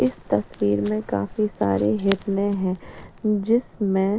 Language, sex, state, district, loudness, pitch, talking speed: Hindi, female, Bihar, Patna, -23 LUFS, 190 Hz, 130 wpm